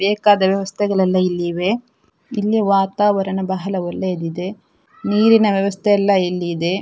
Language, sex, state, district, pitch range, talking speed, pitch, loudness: Kannada, female, Karnataka, Dakshina Kannada, 185-205 Hz, 115 wpm, 195 Hz, -18 LUFS